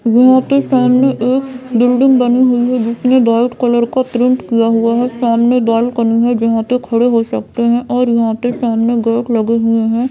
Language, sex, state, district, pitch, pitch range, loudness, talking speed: Hindi, female, Jharkhand, Jamtara, 240 Hz, 230-250 Hz, -13 LUFS, 190 wpm